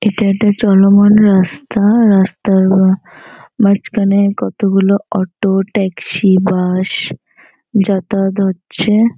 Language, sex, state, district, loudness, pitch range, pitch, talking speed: Bengali, female, West Bengal, North 24 Parganas, -13 LUFS, 190-205 Hz, 195 Hz, 80 wpm